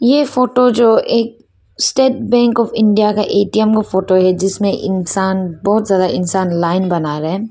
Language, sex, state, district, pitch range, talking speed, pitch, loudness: Hindi, female, Arunachal Pradesh, Papum Pare, 185-235 Hz, 175 wpm, 205 Hz, -14 LUFS